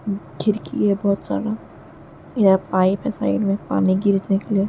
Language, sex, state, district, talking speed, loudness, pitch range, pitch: Hindi, male, Uttar Pradesh, Jalaun, 165 wpm, -20 LUFS, 190-205 Hz, 200 Hz